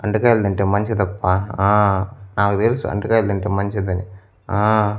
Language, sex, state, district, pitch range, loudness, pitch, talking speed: Telugu, male, Andhra Pradesh, Annamaya, 100-105 Hz, -19 LUFS, 100 Hz, 120 wpm